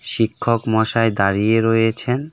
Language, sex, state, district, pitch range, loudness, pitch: Bengali, male, West Bengal, Darjeeling, 110-115 Hz, -18 LUFS, 115 Hz